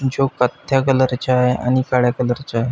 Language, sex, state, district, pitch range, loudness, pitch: Marathi, male, Maharashtra, Pune, 125-130 Hz, -18 LUFS, 125 Hz